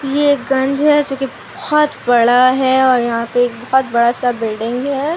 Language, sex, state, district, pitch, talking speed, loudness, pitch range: Hindi, female, Bihar, Kishanganj, 260 Hz, 195 wpm, -15 LUFS, 240-275 Hz